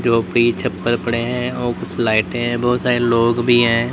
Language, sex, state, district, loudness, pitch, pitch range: Hindi, male, Uttar Pradesh, Lalitpur, -17 LUFS, 120 Hz, 115-120 Hz